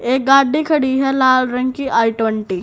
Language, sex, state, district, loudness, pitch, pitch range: Hindi, female, Haryana, Rohtak, -15 LUFS, 260 Hz, 230-270 Hz